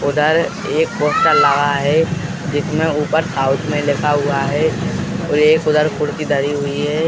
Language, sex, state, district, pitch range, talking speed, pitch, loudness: Hindi, male, Uttar Pradesh, Jalaun, 145-160 Hz, 150 wpm, 150 Hz, -16 LUFS